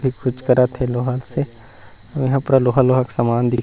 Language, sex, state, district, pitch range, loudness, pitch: Chhattisgarhi, male, Chhattisgarh, Rajnandgaon, 120-130 Hz, -18 LUFS, 125 Hz